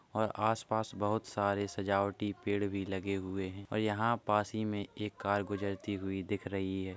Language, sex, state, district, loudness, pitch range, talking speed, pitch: Hindi, male, Uttar Pradesh, Muzaffarnagar, -35 LUFS, 100-105 Hz, 200 wpm, 100 Hz